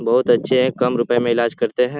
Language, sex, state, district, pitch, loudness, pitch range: Hindi, male, Bihar, Lakhisarai, 125 Hz, -18 LUFS, 120-125 Hz